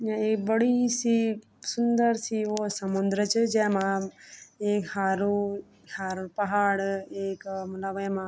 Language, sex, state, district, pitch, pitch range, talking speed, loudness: Garhwali, female, Uttarakhand, Tehri Garhwal, 205 Hz, 195-220 Hz, 130 wpm, -27 LUFS